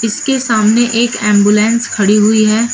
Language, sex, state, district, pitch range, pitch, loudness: Hindi, female, Uttar Pradesh, Shamli, 210-235 Hz, 220 Hz, -11 LUFS